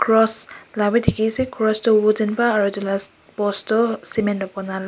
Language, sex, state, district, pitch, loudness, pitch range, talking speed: Nagamese, male, Nagaland, Kohima, 215 Hz, -20 LUFS, 200-225 Hz, 220 wpm